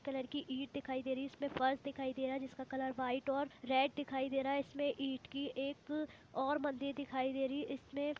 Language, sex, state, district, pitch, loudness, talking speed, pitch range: Hindi, female, Jharkhand, Jamtara, 270 Hz, -40 LUFS, 265 wpm, 265-280 Hz